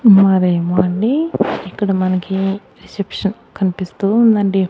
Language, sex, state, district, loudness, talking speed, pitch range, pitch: Telugu, male, Andhra Pradesh, Annamaya, -16 LUFS, 90 wpm, 185-205 Hz, 195 Hz